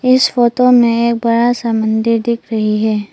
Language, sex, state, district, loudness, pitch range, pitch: Hindi, female, Arunachal Pradesh, Papum Pare, -13 LUFS, 220-240 Hz, 235 Hz